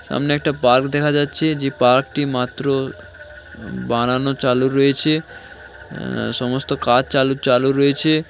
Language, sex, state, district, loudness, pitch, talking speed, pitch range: Bengali, male, West Bengal, Paschim Medinipur, -17 LUFS, 135 Hz, 130 wpm, 125-145 Hz